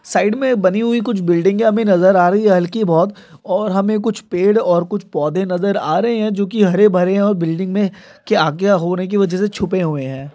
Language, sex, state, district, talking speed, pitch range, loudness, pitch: Hindi, male, Bihar, Sitamarhi, 240 wpm, 180-210 Hz, -16 LUFS, 195 Hz